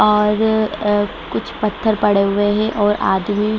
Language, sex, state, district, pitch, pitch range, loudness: Hindi, female, Bihar, Madhepura, 210 Hz, 205-215 Hz, -17 LUFS